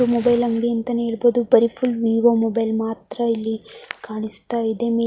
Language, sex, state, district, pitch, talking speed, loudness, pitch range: Kannada, female, Karnataka, Mysore, 230 Hz, 165 wpm, -20 LUFS, 225-235 Hz